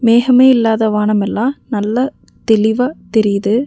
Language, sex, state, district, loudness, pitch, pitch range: Tamil, female, Tamil Nadu, Nilgiris, -14 LUFS, 225 Hz, 215-250 Hz